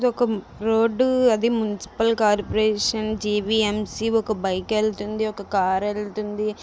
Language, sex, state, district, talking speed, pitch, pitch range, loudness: Telugu, female, Andhra Pradesh, Visakhapatnam, 125 wpm, 215 Hz, 210-225 Hz, -22 LUFS